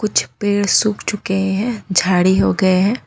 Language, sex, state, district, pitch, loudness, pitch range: Hindi, female, Jharkhand, Ranchi, 200 Hz, -16 LUFS, 190-210 Hz